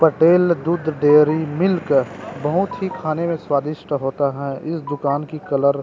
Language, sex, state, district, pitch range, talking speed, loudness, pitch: Chhattisgarhi, male, Chhattisgarh, Rajnandgaon, 140-170 Hz, 165 wpm, -19 LUFS, 150 Hz